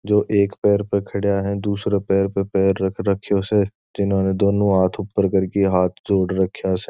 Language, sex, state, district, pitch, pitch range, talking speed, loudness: Marwari, male, Rajasthan, Churu, 100 Hz, 95-100 Hz, 190 wpm, -20 LUFS